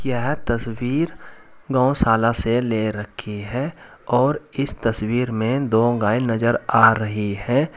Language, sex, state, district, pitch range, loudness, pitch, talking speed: Hindi, male, Uttar Pradesh, Saharanpur, 110-130 Hz, -21 LUFS, 120 Hz, 130 wpm